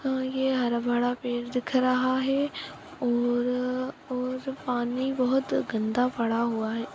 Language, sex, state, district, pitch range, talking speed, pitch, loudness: Hindi, female, Bihar, Jahanabad, 240-260 Hz, 130 wpm, 250 Hz, -27 LUFS